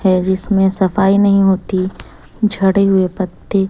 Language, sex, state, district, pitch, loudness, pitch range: Hindi, female, Chhattisgarh, Raipur, 190 Hz, -15 LUFS, 185-195 Hz